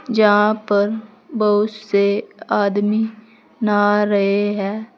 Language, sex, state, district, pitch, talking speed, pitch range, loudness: Hindi, female, Uttar Pradesh, Saharanpur, 210 Hz, 95 wpm, 205-220 Hz, -18 LUFS